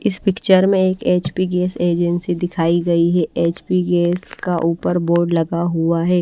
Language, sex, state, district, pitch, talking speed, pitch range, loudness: Hindi, female, Odisha, Malkangiri, 175 Hz, 175 wpm, 170-185 Hz, -17 LUFS